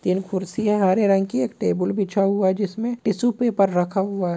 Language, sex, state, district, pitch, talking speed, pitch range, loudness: Hindi, male, West Bengal, Purulia, 195 Hz, 205 wpm, 185-210 Hz, -21 LUFS